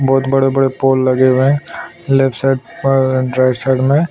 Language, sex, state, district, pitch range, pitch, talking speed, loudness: Hindi, male, Chhattisgarh, Kabirdham, 130-135 Hz, 135 Hz, 175 wpm, -14 LUFS